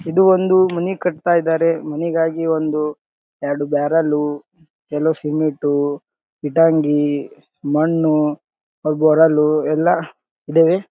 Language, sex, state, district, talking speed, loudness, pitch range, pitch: Kannada, male, Karnataka, Gulbarga, 90 wpm, -17 LUFS, 150-165 Hz, 155 Hz